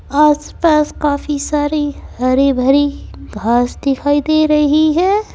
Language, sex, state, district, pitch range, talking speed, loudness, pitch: Hindi, female, Uttar Pradesh, Saharanpur, 275-300 Hz, 110 wpm, -14 LUFS, 290 Hz